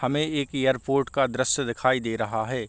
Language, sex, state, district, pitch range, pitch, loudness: Hindi, male, Uttar Pradesh, Varanasi, 120-140 Hz, 130 Hz, -25 LUFS